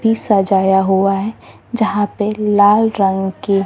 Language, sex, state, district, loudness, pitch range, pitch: Hindi, female, Maharashtra, Gondia, -15 LUFS, 195-215 Hz, 205 Hz